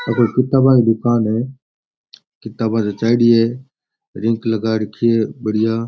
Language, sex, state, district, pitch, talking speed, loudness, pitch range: Rajasthani, male, Rajasthan, Nagaur, 115 Hz, 130 wpm, -16 LUFS, 110-120 Hz